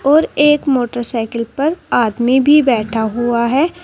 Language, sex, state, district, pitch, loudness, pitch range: Hindi, female, Uttar Pradesh, Saharanpur, 255 Hz, -14 LUFS, 235-295 Hz